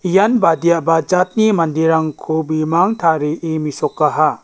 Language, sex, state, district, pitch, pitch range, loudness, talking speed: Garo, male, Meghalaya, West Garo Hills, 165 Hz, 155-180 Hz, -16 LUFS, 95 wpm